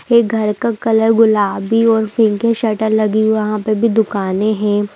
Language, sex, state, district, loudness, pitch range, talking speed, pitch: Hindi, female, Chhattisgarh, Raigarh, -15 LUFS, 210-225 Hz, 180 wpm, 220 Hz